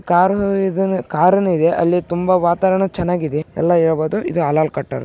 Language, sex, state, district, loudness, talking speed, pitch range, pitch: Kannada, male, Karnataka, Raichur, -17 LUFS, 140 wpm, 170-190 Hz, 175 Hz